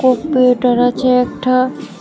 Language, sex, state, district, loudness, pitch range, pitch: Bengali, female, Tripura, West Tripura, -14 LUFS, 250-260 Hz, 255 Hz